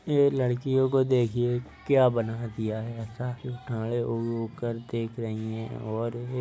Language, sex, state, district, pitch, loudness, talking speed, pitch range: Hindi, male, Uttar Pradesh, Jyotiba Phule Nagar, 120 Hz, -28 LUFS, 150 wpm, 115-125 Hz